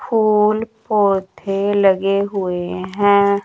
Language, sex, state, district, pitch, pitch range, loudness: Hindi, female, Chandigarh, Chandigarh, 200 Hz, 195-210 Hz, -17 LUFS